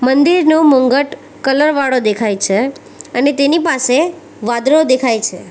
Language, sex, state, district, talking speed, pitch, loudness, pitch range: Gujarati, female, Gujarat, Valsad, 130 wpm, 270 Hz, -13 LUFS, 240-300 Hz